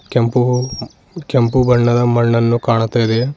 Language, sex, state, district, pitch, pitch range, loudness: Kannada, male, Karnataka, Bidar, 120 Hz, 115-125 Hz, -15 LUFS